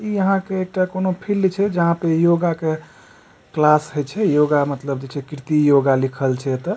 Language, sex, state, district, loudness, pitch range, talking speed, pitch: Maithili, male, Bihar, Supaul, -19 LUFS, 145-190 Hz, 205 wpm, 165 Hz